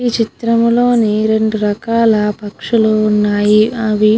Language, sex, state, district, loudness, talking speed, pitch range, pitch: Telugu, female, Andhra Pradesh, Guntur, -13 LUFS, 130 wpm, 210-230 Hz, 220 Hz